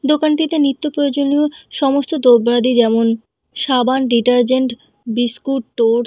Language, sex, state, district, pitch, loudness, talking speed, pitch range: Bengali, female, West Bengal, North 24 Parganas, 260 Hz, -16 LUFS, 120 wpm, 240-285 Hz